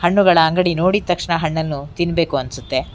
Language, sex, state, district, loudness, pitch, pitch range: Kannada, female, Karnataka, Bangalore, -17 LUFS, 170 Hz, 145-175 Hz